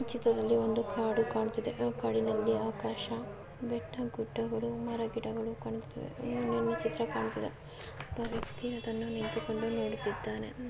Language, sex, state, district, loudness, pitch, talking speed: Kannada, female, Karnataka, Mysore, -35 LUFS, 225 Hz, 110 wpm